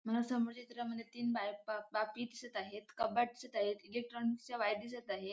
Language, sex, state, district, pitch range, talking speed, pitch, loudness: Marathi, female, Maharashtra, Sindhudurg, 210-240 Hz, 170 wpm, 235 Hz, -40 LUFS